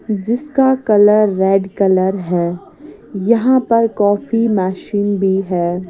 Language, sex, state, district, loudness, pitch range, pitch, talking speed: Hindi, female, Odisha, Sambalpur, -15 LUFS, 190-230 Hz, 205 Hz, 110 wpm